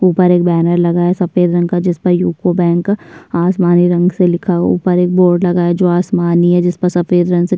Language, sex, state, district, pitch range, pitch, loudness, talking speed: Hindi, female, Uttar Pradesh, Budaun, 175-180 Hz, 175 Hz, -13 LUFS, 240 wpm